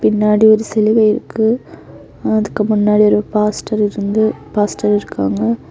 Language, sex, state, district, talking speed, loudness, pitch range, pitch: Tamil, female, Tamil Nadu, Kanyakumari, 115 wpm, -15 LUFS, 210-215 Hz, 210 Hz